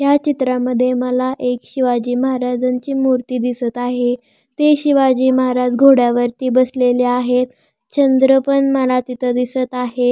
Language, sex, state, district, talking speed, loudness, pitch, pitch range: Marathi, female, Maharashtra, Pune, 125 wpm, -16 LUFS, 250 Hz, 250-265 Hz